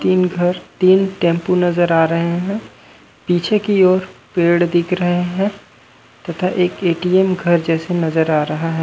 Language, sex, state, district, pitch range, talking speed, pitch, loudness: Chhattisgarhi, male, Chhattisgarh, Raigarh, 170-185 Hz, 170 wpm, 175 Hz, -16 LUFS